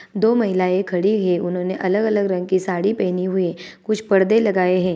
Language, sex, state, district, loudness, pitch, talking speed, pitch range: Hindi, female, Chhattisgarh, Bilaspur, -19 LUFS, 190 Hz, 205 wpm, 180-205 Hz